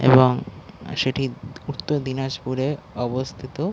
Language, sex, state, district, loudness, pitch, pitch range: Bengali, male, West Bengal, Dakshin Dinajpur, -24 LUFS, 130 Hz, 130-140 Hz